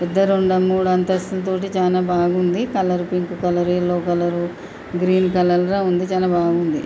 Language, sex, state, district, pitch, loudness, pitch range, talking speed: Telugu, female, Telangana, Nalgonda, 180 Hz, -19 LUFS, 175-185 Hz, 140 wpm